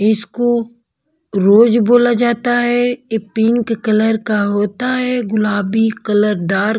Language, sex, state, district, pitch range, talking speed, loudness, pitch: Hindi, female, Bihar, Patna, 215-240 Hz, 135 wpm, -15 LUFS, 225 Hz